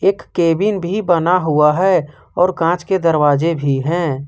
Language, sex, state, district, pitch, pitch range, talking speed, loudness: Hindi, male, Jharkhand, Ranchi, 170 Hz, 150-185 Hz, 170 wpm, -16 LUFS